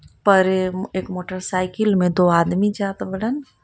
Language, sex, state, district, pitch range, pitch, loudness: Bhojpuri, female, Jharkhand, Palamu, 185-200 Hz, 185 Hz, -20 LUFS